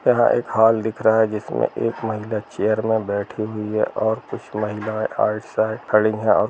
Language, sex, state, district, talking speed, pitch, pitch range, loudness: Hindi, male, Bihar, East Champaran, 210 wpm, 110 Hz, 105-110 Hz, -21 LUFS